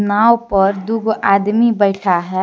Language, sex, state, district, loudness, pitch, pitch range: Hindi, female, Jharkhand, Deoghar, -15 LUFS, 205 Hz, 195-225 Hz